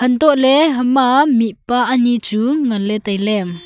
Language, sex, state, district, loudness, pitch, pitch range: Wancho, female, Arunachal Pradesh, Longding, -15 LUFS, 245 Hz, 215-265 Hz